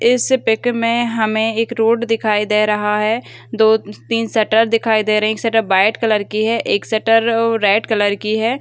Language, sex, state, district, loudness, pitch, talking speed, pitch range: Hindi, female, Bihar, Begusarai, -16 LUFS, 225 Hz, 200 wpm, 215-230 Hz